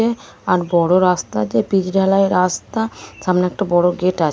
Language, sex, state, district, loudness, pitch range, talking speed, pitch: Bengali, female, West Bengal, Dakshin Dinajpur, -17 LUFS, 175-195 Hz, 180 wpm, 180 Hz